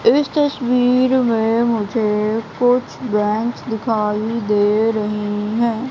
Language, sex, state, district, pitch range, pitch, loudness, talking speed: Hindi, female, Madhya Pradesh, Katni, 210-245 Hz, 225 Hz, -18 LUFS, 100 wpm